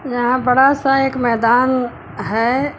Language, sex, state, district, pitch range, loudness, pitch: Hindi, female, Uttar Pradesh, Lucknow, 240-270 Hz, -15 LUFS, 250 Hz